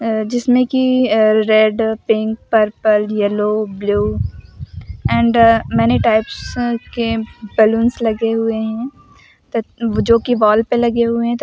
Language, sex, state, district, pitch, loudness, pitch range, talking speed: Hindi, female, Uttar Pradesh, Lucknow, 225 Hz, -16 LUFS, 215-235 Hz, 140 wpm